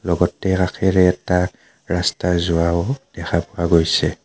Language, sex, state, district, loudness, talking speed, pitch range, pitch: Assamese, male, Assam, Kamrup Metropolitan, -19 LUFS, 115 wpm, 85-95 Hz, 90 Hz